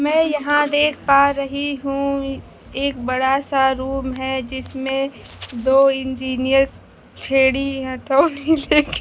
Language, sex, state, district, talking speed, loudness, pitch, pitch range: Hindi, female, Bihar, Kaimur, 115 wpm, -19 LUFS, 270 Hz, 265-280 Hz